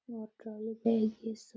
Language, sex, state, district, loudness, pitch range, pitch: Hindi, female, Bihar, Gaya, -34 LUFS, 220-225 Hz, 225 Hz